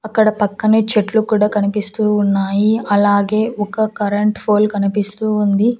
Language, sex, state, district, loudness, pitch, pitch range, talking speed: Telugu, female, Andhra Pradesh, Annamaya, -16 LUFS, 210 Hz, 205-215 Hz, 125 wpm